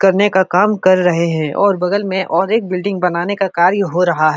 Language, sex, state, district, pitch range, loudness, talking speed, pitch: Hindi, female, Uttar Pradesh, Etah, 175-200 Hz, -15 LUFS, 245 wpm, 185 Hz